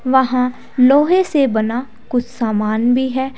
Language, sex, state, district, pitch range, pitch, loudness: Hindi, female, Uttar Pradesh, Saharanpur, 235-265 Hz, 250 Hz, -16 LUFS